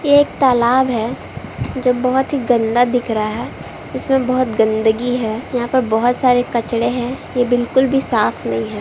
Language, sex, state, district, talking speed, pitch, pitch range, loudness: Hindi, female, Bihar, Kishanganj, 185 wpm, 245 Hz, 230-255 Hz, -17 LUFS